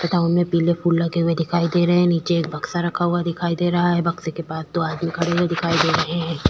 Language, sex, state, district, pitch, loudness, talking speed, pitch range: Hindi, female, Chhattisgarh, Korba, 170 Hz, -20 LUFS, 275 wpm, 165-175 Hz